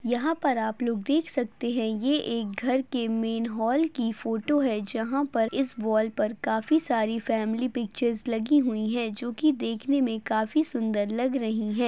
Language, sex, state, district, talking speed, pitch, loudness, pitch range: Hindi, female, Goa, North and South Goa, 185 wpm, 235 Hz, -27 LUFS, 225-265 Hz